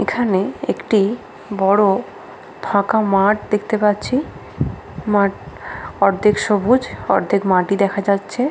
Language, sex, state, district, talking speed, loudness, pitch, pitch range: Bengali, female, West Bengal, Paschim Medinipur, 105 wpm, -18 LUFS, 205 Hz, 200-215 Hz